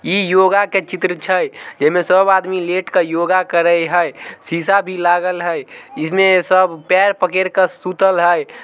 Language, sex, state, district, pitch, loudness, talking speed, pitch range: Maithili, male, Bihar, Samastipur, 185 Hz, -15 LUFS, 175 wpm, 175-195 Hz